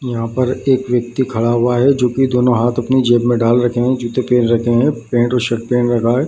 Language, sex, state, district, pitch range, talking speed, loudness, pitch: Hindi, male, Bihar, Madhepura, 120-125 Hz, 255 wpm, -15 LUFS, 120 Hz